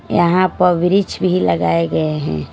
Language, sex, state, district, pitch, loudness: Hindi, female, Bihar, Patna, 90 Hz, -16 LUFS